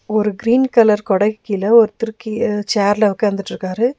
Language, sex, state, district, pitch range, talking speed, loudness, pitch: Tamil, female, Tamil Nadu, Nilgiris, 205-230 Hz, 135 wpm, -16 LUFS, 215 Hz